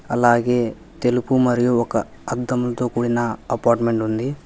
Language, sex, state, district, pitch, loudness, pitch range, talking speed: Telugu, male, Telangana, Hyderabad, 120 Hz, -20 LUFS, 120-125 Hz, 105 wpm